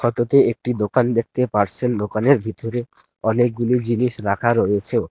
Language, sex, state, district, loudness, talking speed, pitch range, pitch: Bengali, male, West Bengal, Alipurduar, -19 LUFS, 130 wpm, 110-125 Hz, 120 Hz